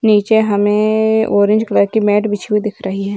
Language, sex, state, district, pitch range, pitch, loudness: Hindi, female, Bihar, Gaya, 205-220 Hz, 210 Hz, -14 LUFS